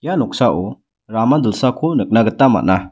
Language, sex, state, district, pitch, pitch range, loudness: Garo, male, Meghalaya, West Garo Hills, 115 Hz, 110-135 Hz, -16 LUFS